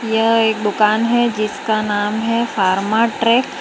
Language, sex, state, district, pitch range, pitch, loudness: Hindi, female, Gujarat, Valsad, 210-230 Hz, 220 Hz, -16 LUFS